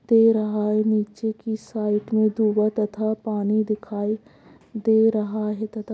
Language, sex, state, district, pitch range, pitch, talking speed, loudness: Magahi, female, Bihar, Gaya, 210-220 Hz, 215 Hz, 150 wpm, -23 LUFS